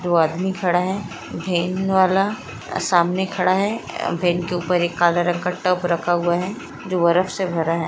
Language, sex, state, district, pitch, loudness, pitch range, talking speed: Hindi, female, Chhattisgarh, Raigarh, 180 Hz, -20 LUFS, 175-190 Hz, 200 wpm